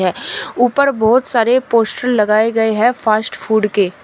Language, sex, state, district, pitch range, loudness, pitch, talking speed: Hindi, female, Uttar Pradesh, Shamli, 215-245 Hz, -14 LUFS, 225 Hz, 150 wpm